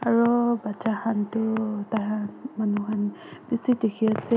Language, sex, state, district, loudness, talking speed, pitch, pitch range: Nagamese, female, Nagaland, Dimapur, -26 LUFS, 135 wpm, 220 Hz, 210-235 Hz